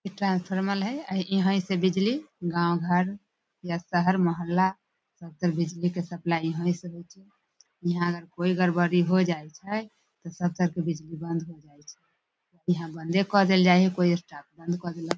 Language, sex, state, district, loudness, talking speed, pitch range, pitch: Maithili, female, Bihar, Darbhanga, -27 LUFS, 180 wpm, 170-190 Hz, 175 Hz